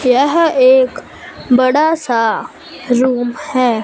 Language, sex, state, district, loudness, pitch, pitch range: Hindi, female, Punjab, Fazilka, -13 LUFS, 255 Hz, 245-280 Hz